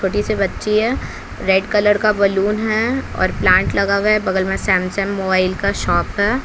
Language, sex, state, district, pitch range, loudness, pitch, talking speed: Hindi, female, Bihar, Patna, 190-215 Hz, -17 LUFS, 200 Hz, 195 wpm